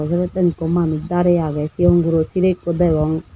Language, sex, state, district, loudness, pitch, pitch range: Chakma, female, Tripura, Unakoti, -18 LUFS, 170 Hz, 160-175 Hz